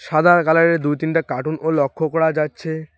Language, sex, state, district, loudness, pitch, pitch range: Bengali, male, West Bengal, Alipurduar, -18 LUFS, 160 Hz, 155-165 Hz